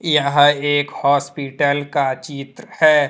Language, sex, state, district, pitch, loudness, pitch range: Hindi, male, Jharkhand, Deoghar, 145 Hz, -17 LUFS, 140-145 Hz